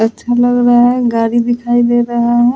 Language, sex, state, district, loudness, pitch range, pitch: Hindi, female, Bihar, Vaishali, -12 LUFS, 235-240 Hz, 240 Hz